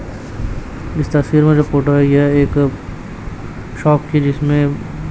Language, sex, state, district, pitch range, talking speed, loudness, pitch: Hindi, male, Chhattisgarh, Raipur, 110-145 Hz, 130 wpm, -15 LUFS, 140 Hz